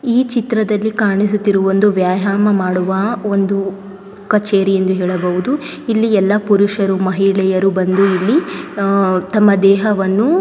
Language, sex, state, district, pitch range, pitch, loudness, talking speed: Kannada, female, Karnataka, Raichur, 190-210 Hz, 200 Hz, -15 LUFS, 110 wpm